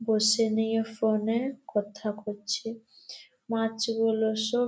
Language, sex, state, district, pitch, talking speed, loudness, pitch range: Bengali, female, West Bengal, Malda, 225 Hz, 90 wpm, -28 LUFS, 215-225 Hz